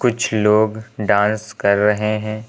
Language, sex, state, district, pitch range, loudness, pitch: Hindi, male, Uttar Pradesh, Lucknow, 105-110 Hz, -18 LUFS, 110 Hz